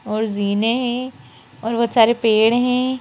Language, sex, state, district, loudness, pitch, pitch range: Hindi, female, Madhya Pradesh, Bhopal, -18 LUFS, 230 Hz, 220-250 Hz